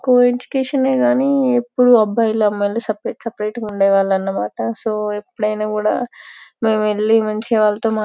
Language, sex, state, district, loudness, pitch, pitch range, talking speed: Telugu, female, Telangana, Karimnagar, -17 LUFS, 220 Hz, 210-245 Hz, 155 wpm